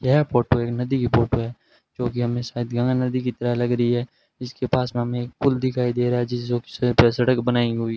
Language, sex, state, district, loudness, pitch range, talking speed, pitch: Hindi, male, Rajasthan, Bikaner, -22 LUFS, 120-125 Hz, 255 wpm, 120 Hz